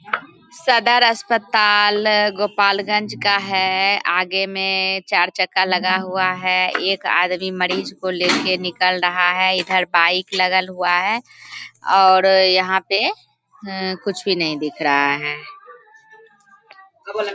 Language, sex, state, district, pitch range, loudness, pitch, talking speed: Hindi, female, Bihar, Begusarai, 185-210 Hz, -17 LUFS, 190 Hz, 120 wpm